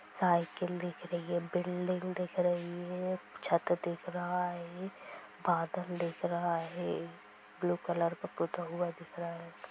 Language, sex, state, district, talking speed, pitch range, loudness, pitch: Hindi, female, Bihar, Sitamarhi, 150 wpm, 170-180 Hz, -36 LUFS, 175 Hz